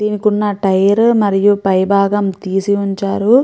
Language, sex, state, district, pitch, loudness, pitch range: Telugu, female, Andhra Pradesh, Chittoor, 200 Hz, -14 LUFS, 195-210 Hz